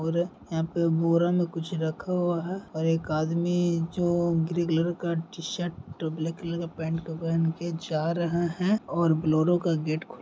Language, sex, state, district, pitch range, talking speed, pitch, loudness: Hindi, male, Bihar, Bhagalpur, 160-175 Hz, 205 wpm, 170 Hz, -27 LUFS